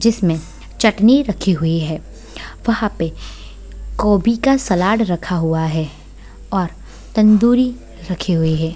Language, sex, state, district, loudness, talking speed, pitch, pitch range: Hindi, female, Bihar, Sitamarhi, -17 LUFS, 130 wpm, 180 Hz, 160-220 Hz